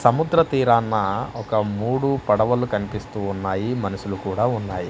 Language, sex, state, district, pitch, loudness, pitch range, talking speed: Telugu, male, Andhra Pradesh, Manyam, 110 Hz, -22 LUFS, 100-125 Hz, 120 wpm